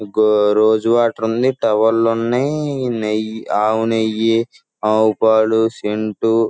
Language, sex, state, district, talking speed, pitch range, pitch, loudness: Telugu, male, Andhra Pradesh, Guntur, 100 wpm, 110-115 Hz, 110 Hz, -16 LUFS